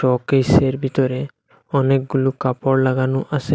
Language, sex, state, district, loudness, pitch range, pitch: Bengali, male, Assam, Hailakandi, -18 LUFS, 130-135 Hz, 135 Hz